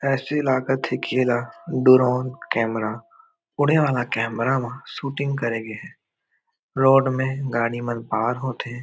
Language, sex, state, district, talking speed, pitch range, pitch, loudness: Chhattisgarhi, male, Chhattisgarh, Raigarh, 130 wpm, 120-135 Hz, 130 Hz, -22 LUFS